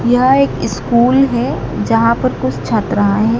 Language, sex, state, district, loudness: Hindi, male, Madhya Pradesh, Dhar, -14 LUFS